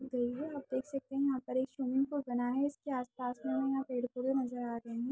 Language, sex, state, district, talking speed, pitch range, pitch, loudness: Hindi, female, Jharkhand, Sahebganj, 245 wpm, 245-275 Hz, 260 Hz, -36 LUFS